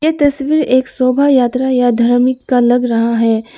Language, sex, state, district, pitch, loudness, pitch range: Hindi, female, Arunachal Pradesh, Lower Dibang Valley, 255 Hz, -13 LUFS, 240-270 Hz